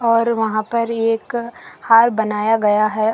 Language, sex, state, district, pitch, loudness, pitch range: Hindi, female, Karnataka, Koppal, 225 Hz, -17 LUFS, 220-235 Hz